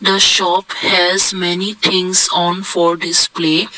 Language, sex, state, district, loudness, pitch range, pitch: English, male, Assam, Kamrup Metropolitan, -13 LUFS, 175-195 Hz, 185 Hz